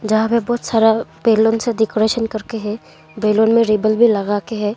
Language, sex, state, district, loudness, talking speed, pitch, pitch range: Hindi, female, Arunachal Pradesh, Longding, -16 LUFS, 200 wpm, 220 Hz, 215-225 Hz